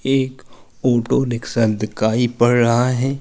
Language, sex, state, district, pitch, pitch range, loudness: Hindi, male, Uttar Pradesh, Jalaun, 120 Hz, 115-130 Hz, -18 LUFS